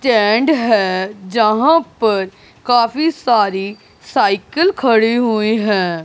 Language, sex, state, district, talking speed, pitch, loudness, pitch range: Hindi, male, Punjab, Pathankot, 100 wpm, 220 Hz, -15 LUFS, 200-245 Hz